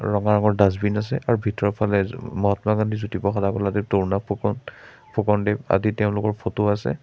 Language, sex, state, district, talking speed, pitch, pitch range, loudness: Assamese, male, Assam, Sonitpur, 180 wpm, 105 Hz, 100-105 Hz, -22 LUFS